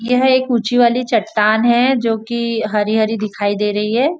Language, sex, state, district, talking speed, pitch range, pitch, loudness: Hindi, female, Maharashtra, Nagpur, 185 wpm, 215-245 Hz, 230 Hz, -16 LUFS